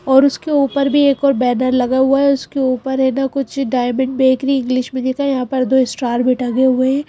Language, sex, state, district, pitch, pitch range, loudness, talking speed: Hindi, female, Madhya Pradesh, Bhopal, 265 Hz, 255-275 Hz, -16 LUFS, 245 wpm